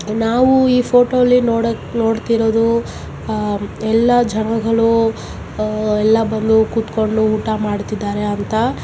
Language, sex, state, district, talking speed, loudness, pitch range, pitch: Kannada, male, Karnataka, Gulbarga, 100 wpm, -16 LUFS, 215-230 Hz, 225 Hz